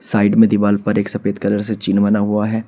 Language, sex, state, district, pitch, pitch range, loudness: Hindi, male, Uttar Pradesh, Shamli, 105 Hz, 100-105 Hz, -16 LUFS